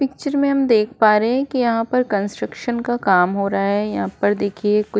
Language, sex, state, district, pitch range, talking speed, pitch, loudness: Hindi, female, Uttar Pradesh, Jyotiba Phule Nagar, 200-250 Hz, 250 wpm, 215 Hz, -19 LUFS